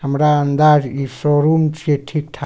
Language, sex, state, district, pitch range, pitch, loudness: Maithili, male, Bihar, Supaul, 140-150 Hz, 145 Hz, -16 LUFS